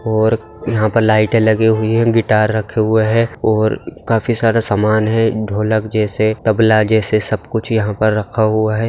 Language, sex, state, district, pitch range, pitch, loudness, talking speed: Hindi, male, Bihar, Kishanganj, 110-115 Hz, 110 Hz, -15 LUFS, 180 wpm